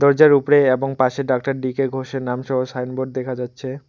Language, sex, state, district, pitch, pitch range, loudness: Bengali, male, West Bengal, Alipurduar, 130 Hz, 130-135 Hz, -19 LUFS